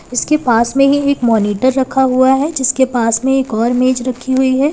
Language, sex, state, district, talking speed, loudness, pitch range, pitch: Hindi, female, Uttar Pradesh, Lalitpur, 230 wpm, -13 LUFS, 245-270 Hz, 260 Hz